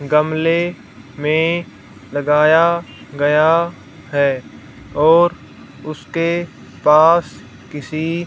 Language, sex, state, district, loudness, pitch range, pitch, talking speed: Hindi, female, Haryana, Rohtak, -16 LUFS, 145-170 Hz, 155 Hz, 65 wpm